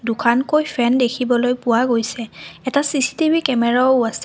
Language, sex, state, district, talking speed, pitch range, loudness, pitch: Assamese, female, Assam, Kamrup Metropolitan, 125 wpm, 235-265 Hz, -18 LUFS, 250 Hz